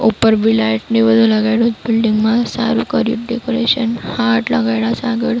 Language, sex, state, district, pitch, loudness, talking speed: Gujarati, female, Maharashtra, Mumbai Suburban, 225 Hz, -15 LUFS, 165 wpm